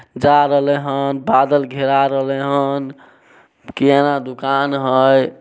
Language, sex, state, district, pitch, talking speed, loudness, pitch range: Maithili, male, Bihar, Samastipur, 140 Hz, 100 wpm, -16 LUFS, 135-140 Hz